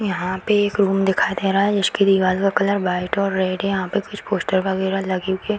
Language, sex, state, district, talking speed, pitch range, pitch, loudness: Hindi, female, Bihar, Darbhanga, 260 wpm, 190-200 Hz, 195 Hz, -20 LUFS